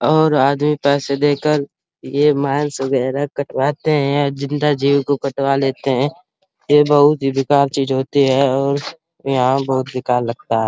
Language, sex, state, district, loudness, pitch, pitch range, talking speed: Hindi, male, Uttar Pradesh, Hamirpur, -17 LUFS, 140 Hz, 135-145 Hz, 165 wpm